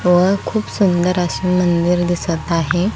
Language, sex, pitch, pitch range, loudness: Marathi, female, 180 Hz, 175-185 Hz, -17 LUFS